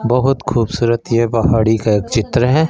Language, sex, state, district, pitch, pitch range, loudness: Hindi, male, Punjab, Fazilka, 115 Hz, 115-125 Hz, -15 LUFS